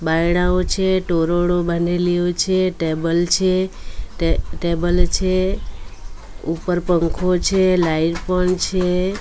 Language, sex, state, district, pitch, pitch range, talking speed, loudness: Gujarati, female, Gujarat, Valsad, 175 Hz, 165-185 Hz, 110 wpm, -19 LUFS